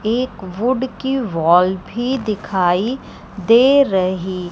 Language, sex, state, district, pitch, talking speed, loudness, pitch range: Hindi, female, Chandigarh, Chandigarh, 215 Hz, 105 wpm, -17 LUFS, 185-255 Hz